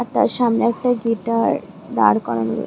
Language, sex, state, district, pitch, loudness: Bengali, female, West Bengal, Dakshin Dinajpur, 230 Hz, -19 LUFS